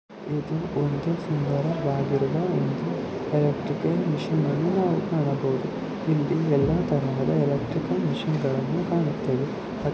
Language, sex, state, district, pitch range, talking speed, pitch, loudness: Kannada, female, Karnataka, Raichur, 140-165 Hz, 85 wpm, 150 Hz, -25 LUFS